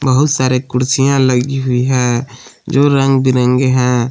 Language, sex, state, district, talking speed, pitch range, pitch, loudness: Hindi, male, Jharkhand, Palamu, 145 wpm, 125-135 Hz, 130 Hz, -13 LUFS